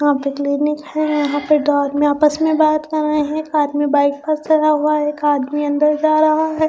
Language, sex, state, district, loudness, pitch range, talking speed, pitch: Hindi, female, Bihar, Katihar, -16 LUFS, 290-310 Hz, 240 wpm, 300 Hz